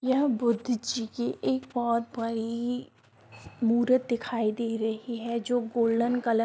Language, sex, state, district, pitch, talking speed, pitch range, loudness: Hindi, female, Bihar, Sitamarhi, 235 Hz, 150 wpm, 230-245 Hz, -28 LUFS